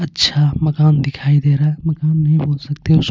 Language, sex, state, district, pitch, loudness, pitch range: Hindi, male, Punjab, Pathankot, 150 Hz, -15 LUFS, 145-155 Hz